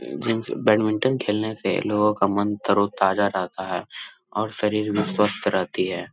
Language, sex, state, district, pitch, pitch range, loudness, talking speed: Hindi, male, Bihar, Jamui, 105 Hz, 95-105 Hz, -23 LUFS, 165 wpm